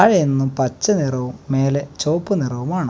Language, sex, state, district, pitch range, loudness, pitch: Malayalam, male, Kerala, Kasaragod, 135-170 Hz, -19 LUFS, 140 Hz